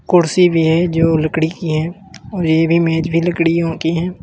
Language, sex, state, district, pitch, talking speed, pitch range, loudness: Hindi, male, Uttar Pradesh, Lalitpur, 165 Hz, 210 wpm, 160-175 Hz, -15 LUFS